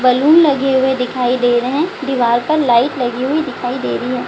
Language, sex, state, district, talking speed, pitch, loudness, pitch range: Hindi, female, Bihar, Gaya, 225 wpm, 255 Hz, -15 LUFS, 245-275 Hz